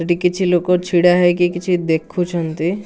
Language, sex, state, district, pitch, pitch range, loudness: Odia, male, Odisha, Nuapada, 175 Hz, 175-180 Hz, -16 LUFS